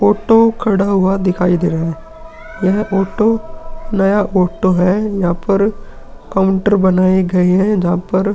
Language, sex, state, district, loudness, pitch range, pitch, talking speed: Hindi, male, Uttar Pradesh, Hamirpur, -14 LUFS, 185-210 Hz, 195 Hz, 150 wpm